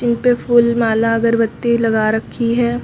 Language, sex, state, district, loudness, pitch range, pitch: Hindi, female, Uttar Pradesh, Lucknow, -15 LUFS, 230-240 Hz, 235 Hz